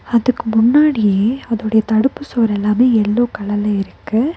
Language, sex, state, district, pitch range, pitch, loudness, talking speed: Tamil, female, Tamil Nadu, Nilgiris, 210-245 Hz, 225 Hz, -15 LUFS, 125 wpm